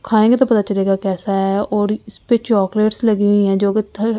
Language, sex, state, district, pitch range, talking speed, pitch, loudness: Hindi, female, Delhi, New Delhi, 200-220 Hz, 185 wpm, 210 Hz, -16 LUFS